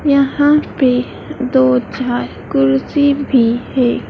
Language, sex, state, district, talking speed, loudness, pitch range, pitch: Hindi, female, Madhya Pradesh, Dhar, 105 wpm, -14 LUFS, 245-280 Hz, 260 Hz